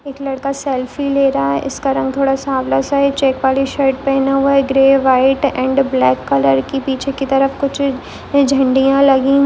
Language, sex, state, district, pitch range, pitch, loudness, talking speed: Hindi, female, Goa, North and South Goa, 265-275 Hz, 270 Hz, -15 LUFS, 180 wpm